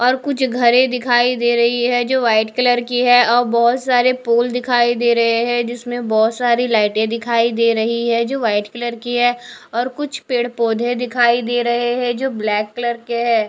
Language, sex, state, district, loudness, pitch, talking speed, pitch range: Hindi, female, Odisha, Khordha, -16 LUFS, 240 Hz, 200 wpm, 235-245 Hz